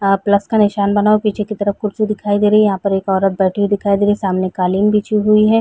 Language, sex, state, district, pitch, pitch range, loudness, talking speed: Hindi, female, Chhattisgarh, Raigarh, 205 Hz, 195-210 Hz, -15 LUFS, 320 wpm